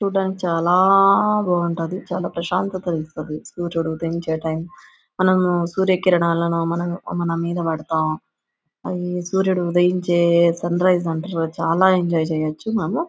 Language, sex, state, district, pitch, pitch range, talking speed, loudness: Telugu, female, Andhra Pradesh, Anantapur, 175 Hz, 165-185 Hz, 105 wpm, -20 LUFS